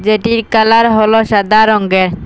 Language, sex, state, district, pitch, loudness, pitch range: Bengali, female, Assam, Hailakandi, 215 Hz, -10 LUFS, 205-225 Hz